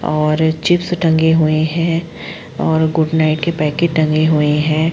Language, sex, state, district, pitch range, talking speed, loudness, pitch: Hindi, female, Uttar Pradesh, Jalaun, 155-165 Hz, 160 wpm, -15 LUFS, 160 Hz